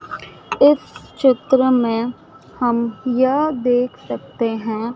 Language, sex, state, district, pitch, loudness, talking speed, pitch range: Hindi, female, Madhya Pradesh, Dhar, 245 Hz, -18 LUFS, 95 wpm, 235-265 Hz